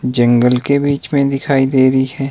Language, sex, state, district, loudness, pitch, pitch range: Hindi, male, Himachal Pradesh, Shimla, -14 LUFS, 135 Hz, 130-140 Hz